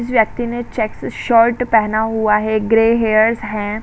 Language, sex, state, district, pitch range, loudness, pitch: Hindi, female, Uttar Pradesh, Jalaun, 215-230 Hz, -16 LUFS, 225 Hz